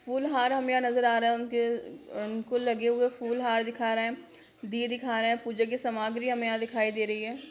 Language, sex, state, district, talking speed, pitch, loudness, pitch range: Hindi, female, Bihar, Purnia, 215 wpm, 235 Hz, -29 LUFS, 230-245 Hz